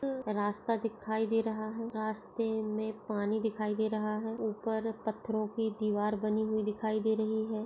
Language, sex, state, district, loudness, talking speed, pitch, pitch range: Hindi, female, Uttar Pradesh, Etah, -34 LUFS, 170 wpm, 220 Hz, 215-220 Hz